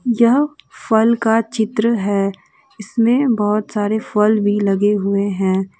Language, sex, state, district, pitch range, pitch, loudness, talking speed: Hindi, female, Jharkhand, Deoghar, 200-235 Hz, 215 Hz, -17 LUFS, 135 wpm